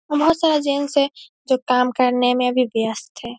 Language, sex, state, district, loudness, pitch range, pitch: Hindi, female, Bihar, Saharsa, -19 LUFS, 245-285 Hz, 255 Hz